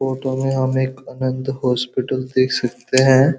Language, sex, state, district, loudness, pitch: Hindi, male, Uttar Pradesh, Muzaffarnagar, -19 LUFS, 130 Hz